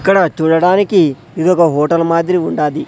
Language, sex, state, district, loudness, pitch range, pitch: Telugu, male, Andhra Pradesh, Sri Satya Sai, -13 LUFS, 160-180 Hz, 165 Hz